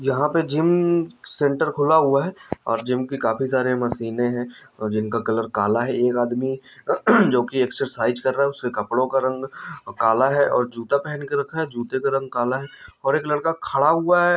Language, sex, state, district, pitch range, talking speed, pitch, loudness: Hindi, male, Chhattisgarh, Bilaspur, 120-145 Hz, 210 wpm, 130 Hz, -22 LUFS